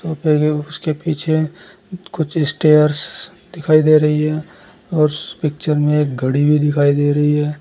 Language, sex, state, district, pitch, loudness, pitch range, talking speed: Hindi, male, Uttar Pradesh, Saharanpur, 155 Hz, -16 LUFS, 150-160 Hz, 150 wpm